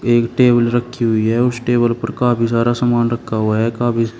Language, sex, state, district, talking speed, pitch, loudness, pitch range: Hindi, male, Uttar Pradesh, Shamli, 230 wpm, 120 Hz, -16 LUFS, 115-120 Hz